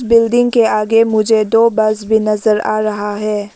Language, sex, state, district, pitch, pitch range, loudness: Hindi, female, Arunachal Pradesh, Lower Dibang Valley, 215 Hz, 215-225 Hz, -13 LUFS